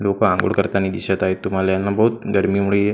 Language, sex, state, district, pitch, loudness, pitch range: Marathi, male, Maharashtra, Gondia, 100 Hz, -19 LUFS, 95-105 Hz